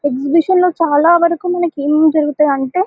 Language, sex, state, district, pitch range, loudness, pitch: Telugu, female, Telangana, Karimnagar, 295-345 Hz, -13 LUFS, 315 Hz